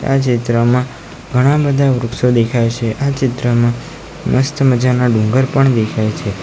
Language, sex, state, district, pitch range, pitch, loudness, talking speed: Gujarati, male, Gujarat, Valsad, 120-135 Hz, 125 Hz, -14 LUFS, 140 wpm